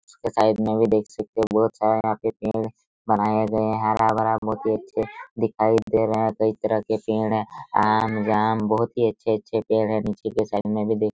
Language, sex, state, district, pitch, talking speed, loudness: Hindi, male, Chhattisgarh, Raigarh, 110 Hz, 220 wpm, -23 LUFS